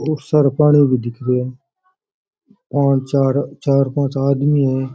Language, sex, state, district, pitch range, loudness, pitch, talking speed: Rajasthani, male, Rajasthan, Churu, 135-150 Hz, -16 LUFS, 140 Hz, 160 wpm